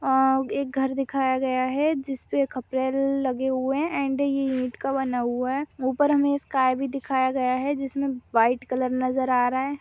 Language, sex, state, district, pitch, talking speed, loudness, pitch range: Hindi, female, Goa, North and South Goa, 265 Hz, 165 wpm, -25 LUFS, 255-275 Hz